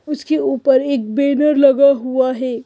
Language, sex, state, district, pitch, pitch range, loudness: Hindi, female, Madhya Pradesh, Bhopal, 275 Hz, 260-285 Hz, -15 LUFS